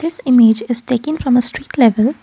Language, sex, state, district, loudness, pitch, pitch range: English, female, Assam, Kamrup Metropolitan, -14 LUFS, 245 Hz, 235-270 Hz